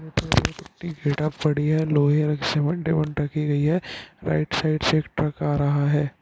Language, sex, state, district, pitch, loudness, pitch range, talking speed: Hindi, male, Uttarakhand, Tehri Garhwal, 150 Hz, -23 LUFS, 145-155 Hz, 155 wpm